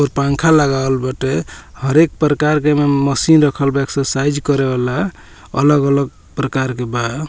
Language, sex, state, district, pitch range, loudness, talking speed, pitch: Bhojpuri, male, Bihar, Muzaffarpur, 135-150 Hz, -16 LUFS, 155 wpm, 140 Hz